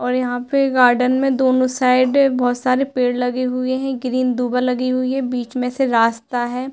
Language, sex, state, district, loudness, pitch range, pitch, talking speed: Hindi, female, Uttar Pradesh, Hamirpur, -18 LUFS, 250-260 Hz, 255 Hz, 205 wpm